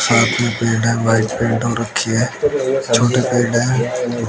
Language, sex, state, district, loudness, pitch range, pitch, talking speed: Hindi, male, Bihar, West Champaran, -16 LUFS, 115-125 Hz, 120 Hz, 100 wpm